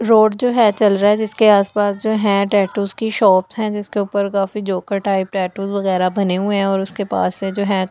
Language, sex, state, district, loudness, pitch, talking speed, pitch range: Hindi, female, Delhi, New Delhi, -17 LUFS, 200 Hz, 245 wpm, 195-210 Hz